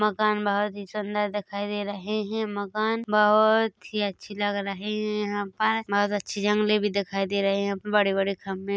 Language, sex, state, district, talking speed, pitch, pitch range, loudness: Hindi, female, Chhattisgarh, Korba, 205 wpm, 205 Hz, 200-210 Hz, -26 LUFS